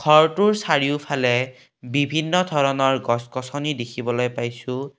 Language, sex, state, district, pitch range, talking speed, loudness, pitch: Assamese, male, Assam, Kamrup Metropolitan, 125-150 Hz, 95 wpm, -21 LUFS, 135 Hz